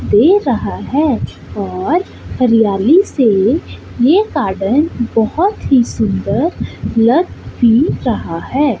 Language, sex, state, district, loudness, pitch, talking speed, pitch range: Hindi, female, Chandigarh, Chandigarh, -14 LUFS, 255 Hz, 100 wpm, 220-330 Hz